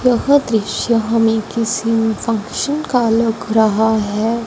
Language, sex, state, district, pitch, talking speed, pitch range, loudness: Hindi, female, Punjab, Fazilka, 225 Hz, 120 wpm, 220-235 Hz, -16 LUFS